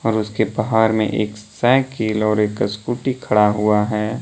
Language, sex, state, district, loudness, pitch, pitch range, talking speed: Hindi, male, Jharkhand, Deoghar, -19 LUFS, 110 Hz, 105-115 Hz, 155 wpm